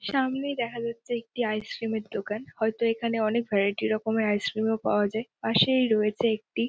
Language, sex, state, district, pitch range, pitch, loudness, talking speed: Bengali, female, West Bengal, Dakshin Dinajpur, 215-235 Hz, 225 Hz, -27 LUFS, 190 wpm